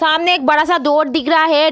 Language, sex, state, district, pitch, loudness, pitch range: Hindi, female, Bihar, Kishanganj, 315 Hz, -13 LUFS, 305-325 Hz